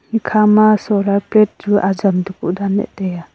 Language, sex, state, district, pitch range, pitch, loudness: Wancho, female, Arunachal Pradesh, Longding, 190-215 Hz, 200 Hz, -15 LUFS